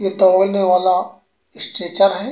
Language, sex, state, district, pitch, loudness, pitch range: Bhojpuri, male, Uttar Pradesh, Gorakhpur, 190 Hz, -16 LUFS, 185-195 Hz